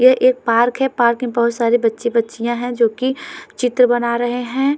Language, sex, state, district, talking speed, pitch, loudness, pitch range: Hindi, female, Uttarakhand, Tehri Garhwal, 200 wpm, 240 Hz, -17 LUFS, 235-255 Hz